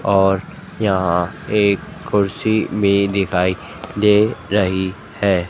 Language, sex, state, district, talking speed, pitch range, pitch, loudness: Hindi, female, Madhya Pradesh, Dhar, 100 wpm, 95-105 Hz, 100 Hz, -18 LUFS